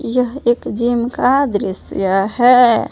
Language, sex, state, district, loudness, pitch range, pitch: Hindi, female, Jharkhand, Palamu, -15 LUFS, 215-250 Hz, 240 Hz